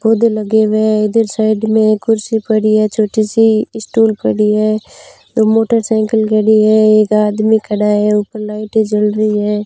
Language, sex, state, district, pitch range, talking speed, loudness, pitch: Hindi, female, Rajasthan, Bikaner, 210-220 Hz, 175 wpm, -13 LUFS, 215 Hz